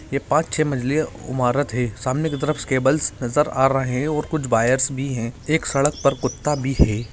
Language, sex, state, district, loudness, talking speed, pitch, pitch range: Hindi, male, Bihar, Gaya, -21 LUFS, 210 wpm, 135 Hz, 125-150 Hz